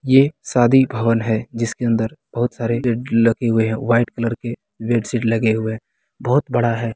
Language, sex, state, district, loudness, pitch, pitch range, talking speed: Hindi, male, Bihar, Begusarai, -19 LUFS, 115 Hz, 115-120 Hz, 190 wpm